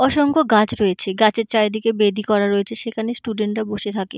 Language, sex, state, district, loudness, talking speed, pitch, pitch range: Bengali, female, West Bengal, Malda, -19 LUFS, 185 wpm, 215 Hz, 205-225 Hz